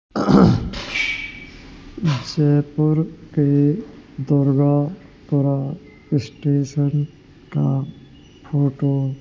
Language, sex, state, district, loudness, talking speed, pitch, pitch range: Hindi, male, Rajasthan, Jaipur, -20 LUFS, 45 wpm, 145 Hz, 140-150 Hz